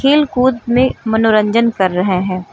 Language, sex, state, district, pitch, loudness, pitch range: Hindi, female, Uttar Pradesh, Lucknow, 225 Hz, -14 LUFS, 190-255 Hz